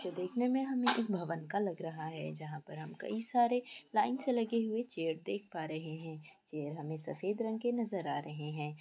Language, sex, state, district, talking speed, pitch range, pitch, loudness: Hindi, female, Bihar, East Champaran, 225 wpm, 155-230 Hz, 185 Hz, -37 LUFS